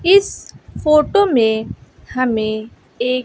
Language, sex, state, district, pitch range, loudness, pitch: Hindi, female, Bihar, West Champaran, 220-305 Hz, -16 LUFS, 255 Hz